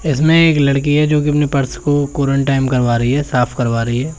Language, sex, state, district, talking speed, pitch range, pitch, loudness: Hindi, male, Uttar Pradesh, Shamli, 245 wpm, 125-150 Hz, 140 Hz, -15 LUFS